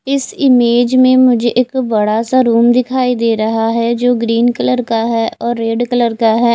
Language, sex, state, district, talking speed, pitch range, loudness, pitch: Hindi, female, Odisha, Nuapada, 200 wpm, 230-250 Hz, -13 LUFS, 235 Hz